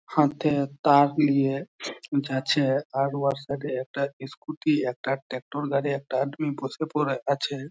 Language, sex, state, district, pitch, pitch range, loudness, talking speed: Bengali, male, West Bengal, Jhargram, 140 Hz, 135-145 Hz, -26 LUFS, 125 wpm